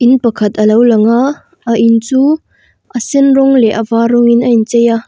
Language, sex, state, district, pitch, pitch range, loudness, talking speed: Mizo, female, Mizoram, Aizawl, 235 Hz, 230-260 Hz, -10 LUFS, 200 wpm